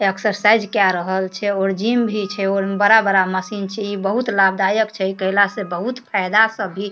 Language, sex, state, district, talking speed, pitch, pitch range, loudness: Maithili, female, Bihar, Darbhanga, 190 wpm, 200 Hz, 190-215 Hz, -18 LUFS